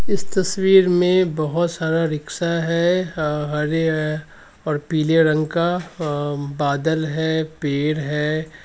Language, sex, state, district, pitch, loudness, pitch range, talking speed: Hindi, male, Bihar, Sitamarhi, 160 Hz, -20 LUFS, 150-170 Hz, 130 wpm